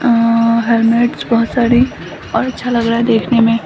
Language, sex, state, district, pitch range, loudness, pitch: Hindi, female, Bihar, Samastipur, 230-240 Hz, -13 LUFS, 230 Hz